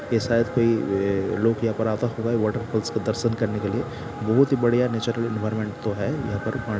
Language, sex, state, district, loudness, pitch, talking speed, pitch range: Hindi, male, Bihar, Saran, -24 LUFS, 115 Hz, 205 wpm, 110-120 Hz